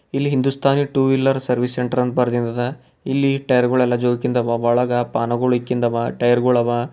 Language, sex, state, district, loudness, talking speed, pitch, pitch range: Kannada, male, Karnataka, Bidar, -19 LUFS, 130 wpm, 125 Hz, 120-135 Hz